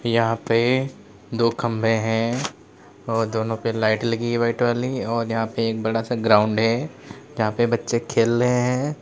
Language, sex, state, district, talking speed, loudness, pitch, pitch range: Hindi, male, Uttar Pradesh, Lalitpur, 185 wpm, -22 LUFS, 115 Hz, 115-120 Hz